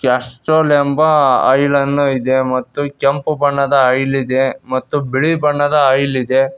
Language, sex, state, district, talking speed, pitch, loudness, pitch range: Kannada, male, Karnataka, Koppal, 135 wpm, 140 Hz, -14 LUFS, 130-145 Hz